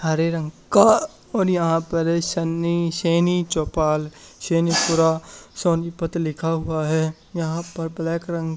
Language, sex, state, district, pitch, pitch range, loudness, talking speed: Hindi, male, Haryana, Charkhi Dadri, 165 Hz, 160-170 Hz, -21 LUFS, 135 wpm